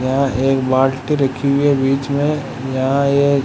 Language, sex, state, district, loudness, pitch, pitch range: Hindi, male, Rajasthan, Bikaner, -17 LUFS, 135 Hz, 130-140 Hz